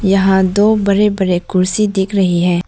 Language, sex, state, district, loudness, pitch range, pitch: Hindi, female, Arunachal Pradesh, Lower Dibang Valley, -13 LUFS, 185-205 Hz, 190 Hz